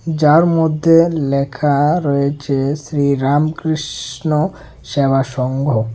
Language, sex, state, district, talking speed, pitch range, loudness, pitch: Bengali, male, Tripura, West Tripura, 70 wpm, 140-155 Hz, -16 LUFS, 145 Hz